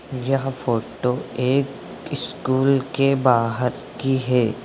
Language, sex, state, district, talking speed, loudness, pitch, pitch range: Hindi, male, Uttar Pradesh, Lucknow, 105 wpm, -22 LUFS, 130 Hz, 125-135 Hz